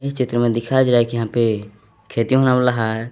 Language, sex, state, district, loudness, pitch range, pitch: Hindi, male, Jharkhand, Palamu, -18 LUFS, 115-130 Hz, 120 Hz